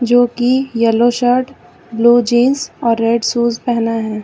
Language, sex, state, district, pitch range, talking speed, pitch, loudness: Hindi, female, Uttar Pradesh, Lucknow, 230-245 Hz, 155 wpm, 240 Hz, -14 LUFS